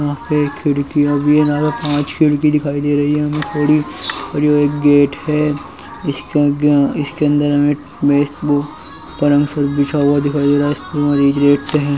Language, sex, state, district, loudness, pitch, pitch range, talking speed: Hindi, male, Uttar Pradesh, Muzaffarnagar, -15 LUFS, 145 Hz, 145-150 Hz, 120 wpm